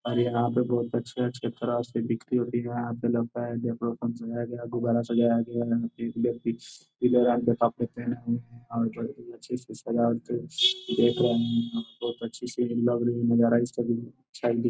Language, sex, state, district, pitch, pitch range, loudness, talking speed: Hindi, male, Bihar, Gopalganj, 120 Hz, 115-120 Hz, -28 LUFS, 140 wpm